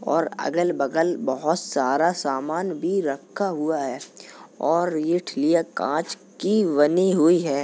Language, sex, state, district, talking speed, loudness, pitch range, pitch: Hindi, male, Uttar Pradesh, Jalaun, 135 wpm, -23 LUFS, 155-185 Hz, 170 Hz